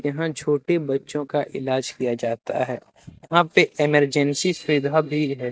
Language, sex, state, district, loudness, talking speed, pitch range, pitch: Hindi, male, Jharkhand, Deoghar, -22 LUFS, 150 wpm, 135-155 Hz, 145 Hz